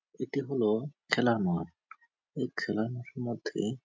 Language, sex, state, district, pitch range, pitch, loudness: Bengali, male, West Bengal, Jhargram, 110-145 Hz, 125 Hz, -32 LUFS